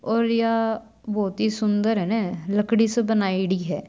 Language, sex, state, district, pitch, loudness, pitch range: Marwari, female, Rajasthan, Churu, 215 Hz, -23 LUFS, 195-225 Hz